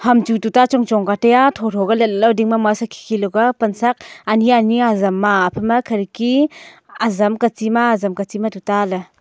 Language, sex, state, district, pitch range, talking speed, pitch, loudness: Wancho, female, Arunachal Pradesh, Longding, 210-240 Hz, 190 wpm, 225 Hz, -16 LUFS